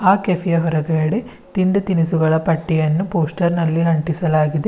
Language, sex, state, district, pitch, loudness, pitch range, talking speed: Kannada, female, Karnataka, Bidar, 165 Hz, -18 LUFS, 160-185 Hz, 130 wpm